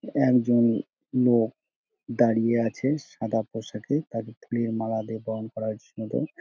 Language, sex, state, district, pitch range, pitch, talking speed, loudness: Bengali, male, West Bengal, Dakshin Dinajpur, 110-120 Hz, 115 Hz, 130 wpm, -26 LUFS